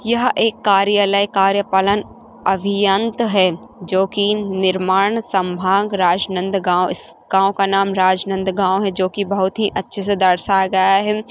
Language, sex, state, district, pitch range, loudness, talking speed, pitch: Hindi, female, Chhattisgarh, Rajnandgaon, 190-205 Hz, -17 LUFS, 135 wpm, 195 Hz